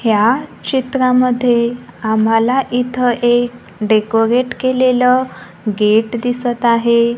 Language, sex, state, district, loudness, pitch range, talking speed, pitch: Marathi, female, Maharashtra, Gondia, -15 LUFS, 225-250 Hz, 85 wpm, 240 Hz